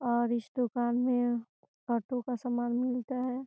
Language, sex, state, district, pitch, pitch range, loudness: Hindi, female, Bihar, Gopalganj, 245 Hz, 240-250 Hz, -32 LUFS